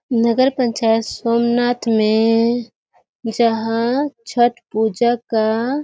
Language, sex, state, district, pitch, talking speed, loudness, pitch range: Hindi, female, Chhattisgarh, Sarguja, 235 Hz, 90 wpm, -17 LUFS, 225-245 Hz